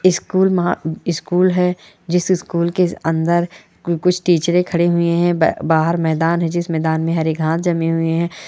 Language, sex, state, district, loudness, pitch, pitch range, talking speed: Hindi, female, Chhattisgarh, Korba, -17 LUFS, 170 Hz, 165-180 Hz, 175 wpm